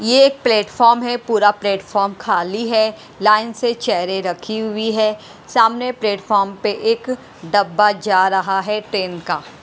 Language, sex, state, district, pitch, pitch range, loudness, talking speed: Hindi, female, Punjab, Pathankot, 215 Hz, 195-225 Hz, -17 LUFS, 150 wpm